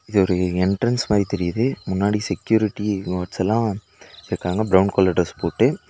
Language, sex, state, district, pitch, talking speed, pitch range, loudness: Tamil, male, Tamil Nadu, Nilgiris, 100 Hz, 140 wpm, 90-105 Hz, -21 LUFS